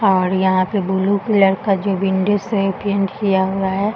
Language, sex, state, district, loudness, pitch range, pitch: Hindi, female, Bihar, Bhagalpur, -17 LUFS, 190-200 Hz, 195 Hz